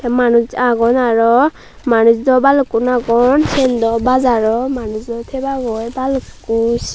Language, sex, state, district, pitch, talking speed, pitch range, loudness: Chakma, female, Tripura, Unakoti, 245 Hz, 130 wpm, 230-260 Hz, -14 LUFS